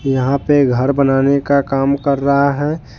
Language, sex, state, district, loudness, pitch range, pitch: Hindi, male, Jharkhand, Deoghar, -15 LUFS, 135-140 Hz, 140 Hz